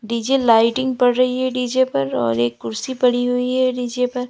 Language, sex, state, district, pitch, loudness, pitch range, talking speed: Hindi, female, Uttar Pradesh, Lalitpur, 250 Hz, -18 LUFS, 230-255 Hz, 210 wpm